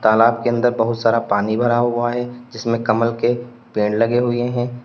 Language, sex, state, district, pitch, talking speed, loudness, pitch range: Hindi, male, Uttar Pradesh, Lalitpur, 120 Hz, 200 wpm, -18 LUFS, 115-120 Hz